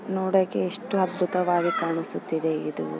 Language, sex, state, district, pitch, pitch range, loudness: Kannada, female, Karnataka, Bellary, 180 Hz, 160-190 Hz, -25 LUFS